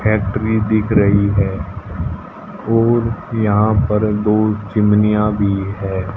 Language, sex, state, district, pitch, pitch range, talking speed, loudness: Hindi, male, Haryana, Jhajjar, 105 Hz, 100-110 Hz, 105 wpm, -16 LUFS